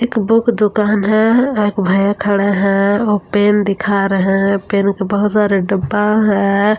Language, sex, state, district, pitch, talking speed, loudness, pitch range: Hindi, female, Jharkhand, Palamu, 205 Hz, 170 wpm, -14 LUFS, 200-210 Hz